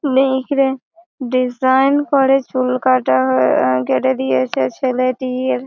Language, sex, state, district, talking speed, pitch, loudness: Bengali, female, West Bengal, Malda, 85 wpm, 255 Hz, -16 LUFS